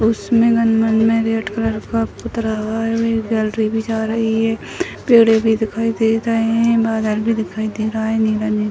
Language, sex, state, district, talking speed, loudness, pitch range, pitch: Hindi, female, Bihar, Sitamarhi, 95 wpm, -17 LUFS, 220-225 Hz, 225 Hz